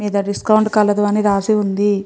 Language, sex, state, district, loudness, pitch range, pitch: Telugu, female, Andhra Pradesh, Krishna, -16 LUFS, 200-210 Hz, 205 Hz